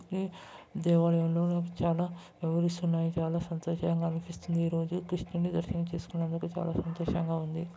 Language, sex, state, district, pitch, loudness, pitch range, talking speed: Telugu, male, Karnataka, Gulbarga, 170 Hz, -32 LUFS, 165-175 Hz, 100 wpm